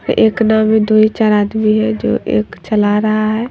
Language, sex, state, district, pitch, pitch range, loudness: Hindi, female, Bihar, West Champaran, 215 Hz, 215-220 Hz, -13 LUFS